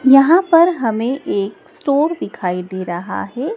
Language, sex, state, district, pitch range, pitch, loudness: Hindi, female, Madhya Pradesh, Dhar, 195-315 Hz, 265 Hz, -17 LUFS